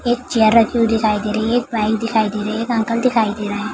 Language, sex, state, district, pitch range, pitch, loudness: Hindi, female, Bihar, Madhepura, 215-235 Hz, 225 Hz, -17 LUFS